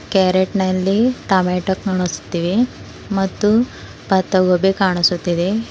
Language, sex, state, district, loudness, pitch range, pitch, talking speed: Kannada, female, Karnataka, Bidar, -17 LUFS, 185-200 Hz, 190 Hz, 65 wpm